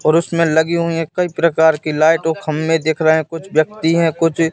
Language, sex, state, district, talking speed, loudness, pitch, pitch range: Hindi, male, Madhya Pradesh, Katni, 240 wpm, -16 LUFS, 165 Hz, 160-165 Hz